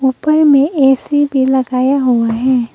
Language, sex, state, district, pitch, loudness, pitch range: Hindi, female, Arunachal Pradesh, Papum Pare, 265 Hz, -12 LUFS, 255-285 Hz